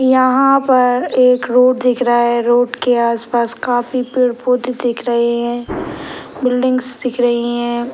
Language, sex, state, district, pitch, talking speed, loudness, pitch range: Hindi, male, Bihar, Sitamarhi, 245 Hz, 145 wpm, -15 LUFS, 240-255 Hz